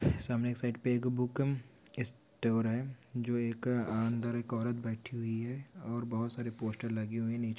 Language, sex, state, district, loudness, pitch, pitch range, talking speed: Hindi, male, West Bengal, Kolkata, -36 LUFS, 120 Hz, 115-125 Hz, 165 wpm